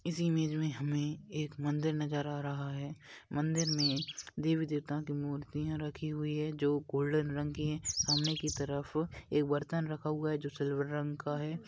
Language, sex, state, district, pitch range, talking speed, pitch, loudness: Hindi, female, Bihar, Madhepura, 145-155 Hz, 190 wpm, 150 Hz, -35 LUFS